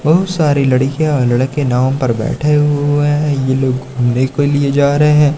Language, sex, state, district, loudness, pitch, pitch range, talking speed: Hindi, male, Madhya Pradesh, Katni, -14 LUFS, 140 Hz, 130-150 Hz, 190 wpm